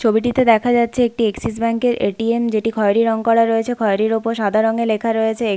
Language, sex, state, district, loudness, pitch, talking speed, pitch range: Bengali, female, West Bengal, Paschim Medinipur, -17 LUFS, 225 Hz, 225 wpm, 220-230 Hz